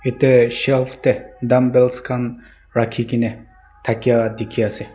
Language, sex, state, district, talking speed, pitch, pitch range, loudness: Nagamese, male, Nagaland, Dimapur, 120 wpm, 120 Hz, 115-125 Hz, -18 LUFS